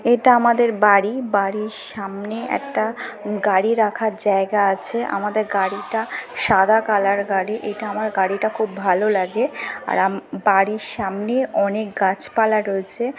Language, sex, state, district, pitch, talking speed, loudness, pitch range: Bengali, female, West Bengal, North 24 Parganas, 210 Hz, 130 wpm, -20 LUFS, 200-225 Hz